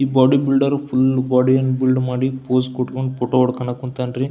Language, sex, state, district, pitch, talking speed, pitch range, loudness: Kannada, male, Karnataka, Belgaum, 130 Hz, 165 wpm, 125-130 Hz, -18 LUFS